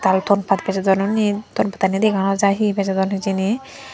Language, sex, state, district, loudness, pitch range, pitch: Chakma, female, Tripura, Dhalai, -19 LUFS, 195-210 Hz, 200 Hz